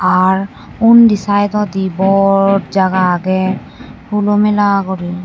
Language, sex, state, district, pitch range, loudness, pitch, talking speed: Chakma, female, Tripura, West Tripura, 185-205 Hz, -13 LUFS, 195 Hz, 105 wpm